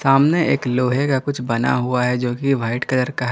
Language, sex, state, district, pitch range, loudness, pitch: Hindi, male, Jharkhand, Garhwa, 125-135 Hz, -19 LUFS, 125 Hz